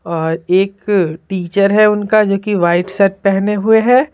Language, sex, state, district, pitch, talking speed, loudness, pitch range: Hindi, female, Bihar, Patna, 195 Hz, 175 wpm, -14 LUFS, 180-210 Hz